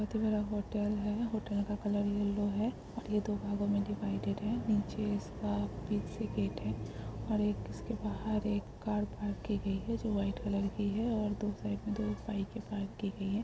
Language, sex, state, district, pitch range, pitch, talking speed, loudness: Hindi, female, Bihar, Jamui, 195-210 Hz, 205 Hz, 210 wpm, -36 LUFS